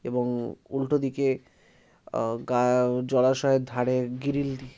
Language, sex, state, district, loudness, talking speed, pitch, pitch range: Bengali, male, West Bengal, Kolkata, -26 LUFS, 100 wpm, 125 Hz, 125-135 Hz